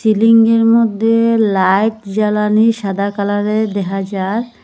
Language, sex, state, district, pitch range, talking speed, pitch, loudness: Bengali, female, Assam, Hailakandi, 200-225 Hz, 105 wpm, 215 Hz, -14 LUFS